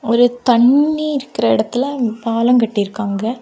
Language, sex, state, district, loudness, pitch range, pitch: Tamil, female, Tamil Nadu, Kanyakumari, -16 LUFS, 225-255 Hz, 240 Hz